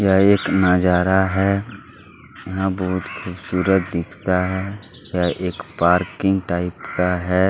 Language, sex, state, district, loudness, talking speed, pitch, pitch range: Hindi, male, Chhattisgarh, Kabirdham, -20 LUFS, 120 wpm, 95 Hz, 90-95 Hz